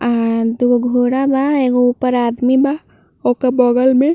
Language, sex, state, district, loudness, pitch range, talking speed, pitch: Bhojpuri, female, Uttar Pradesh, Ghazipur, -15 LUFS, 245-265 Hz, 175 wpm, 250 Hz